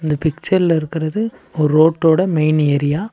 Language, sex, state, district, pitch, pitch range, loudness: Tamil, male, Tamil Nadu, Namakkal, 155 Hz, 150-175 Hz, -16 LUFS